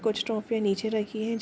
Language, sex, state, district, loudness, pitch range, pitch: Hindi, female, Bihar, Darbhanga, -29 LUFS, 215-225 Hz, 220 Hz